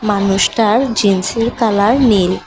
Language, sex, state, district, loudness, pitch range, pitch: Bengali, female, Assam, Hailakandi, -13 LUFS, 195-230 Hz, 210 Hz